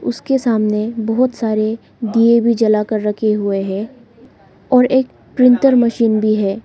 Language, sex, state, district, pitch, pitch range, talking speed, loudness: Hindi, female, Arunachal Pradesh, Lower Dibang Valley, 225 Hz, 215-245 Hz, 155 wpm, -15 LUFS